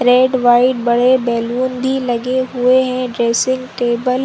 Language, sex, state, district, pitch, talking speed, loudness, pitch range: Hindi, female, Chhattisgarh, Korba, 250 Hz, 140 wpm, -15 LUFS, 240-255 Hz